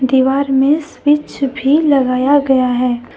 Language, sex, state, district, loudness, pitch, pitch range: Hindi, female, Jharkhand, Deoghar, -14 LUFS, 270 Hz, 260-290 Hz